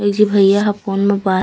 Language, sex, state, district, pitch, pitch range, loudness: Chhattisgarhi, female, Chhattisgarh, Raigarh, 200 Hz, 195-205 Hz, -15 LUFS